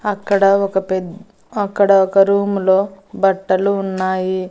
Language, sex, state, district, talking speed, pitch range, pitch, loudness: Telugu, female, Andhra Pradesh, Annamaya, 120 wpm, 190-200 Hz, 195 Hz, -16 LUFS